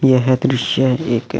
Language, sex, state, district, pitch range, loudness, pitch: Hindi, male, Chhattisgarh, Kabirdham, 120-130 Hz, -16 LUFS, 130 Hz